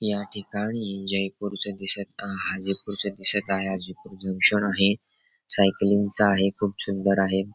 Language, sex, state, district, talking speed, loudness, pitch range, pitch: Marathi, male, Maharashtra, Dhule, 120 wpm, -24 LUFS, 95-100 Hz, 100 Hz